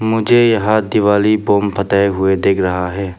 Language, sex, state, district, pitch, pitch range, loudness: Hindi, male, Arunachal Pradesh, Papum Pare, 100 Hz, 95-110 Hz, -14 LUFS